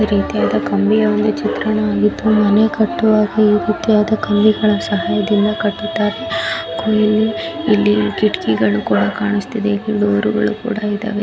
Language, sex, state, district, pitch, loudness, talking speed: Kannada, female, Karnataka, Raichur, 210 Hz, -16 LUFS, 105 wpm